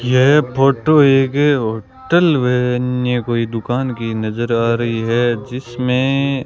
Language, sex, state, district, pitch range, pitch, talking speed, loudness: Hindi, male, Rajasthan, Bikaner, 115-135 Hz, 125 Hz, 140 wpm, -16 LUFS